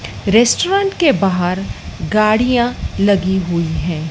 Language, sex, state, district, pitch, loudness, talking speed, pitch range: Hindi, female, Madhya Pradesh, Dhar, 200 Hz, -15 LUFS, 100 wpm, 175-240 Hz